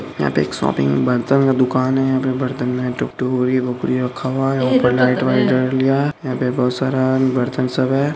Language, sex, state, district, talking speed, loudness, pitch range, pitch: Hindi, male, Bihar, Araria, 185 wpm, -18 LUFS, 125-130 Hz, 130 Hz